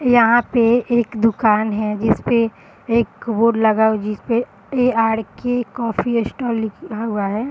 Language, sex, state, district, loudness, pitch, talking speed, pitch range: Hindi, female, Bihar, Madhepura, -18 LUFS, 225 Hz, 145 wpm, 215-240 Hz